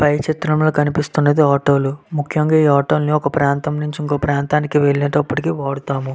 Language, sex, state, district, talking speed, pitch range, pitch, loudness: Telugu, male, Andhra Pradesh, Visakhapatnam, 155 wpm, 140-150 Hz, 145 Hz, -17 LUFS